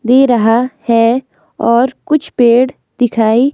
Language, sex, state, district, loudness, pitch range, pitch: Hindi, female, Himachal Pradesh, Shimla, -12 LUFS, 235-265 Hz, 245 Hz